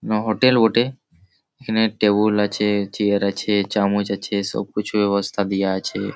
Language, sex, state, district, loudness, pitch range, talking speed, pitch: Bengali, male, West Bengal, Malda, -20 LUFS, 100-110 Hz, 155 wpm, 105 Hz